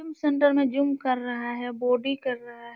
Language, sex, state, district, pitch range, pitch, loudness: Hindi, female, Uttar Pradesh, Jalaun, 245-280 Hz, 255 Hz, -26 LUFS